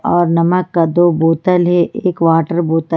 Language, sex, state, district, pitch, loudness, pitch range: Hindi, female, Jharkhand, Ranchi, 170 Hz, -13 LUFS, 165-175 Hz